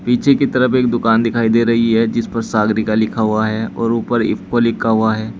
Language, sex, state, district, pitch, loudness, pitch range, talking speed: Hindi, male, Uttar Pradesh, Shamli, 115 Hz, -16 LUFS, 110-115 Hz, 235 wpm